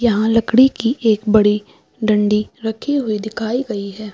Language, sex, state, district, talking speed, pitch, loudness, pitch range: Hindi, female, Chhattisgarh, Balrampur, 160 wpm, 220 Hz, -17 LUFS, 210-235 Hz